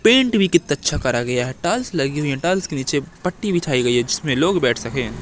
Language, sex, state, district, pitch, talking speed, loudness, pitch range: Hindi, male, Madhya Pradesh, Katni, 145 Hz, 255 wpm, -19 LUFS, 125-180 Hz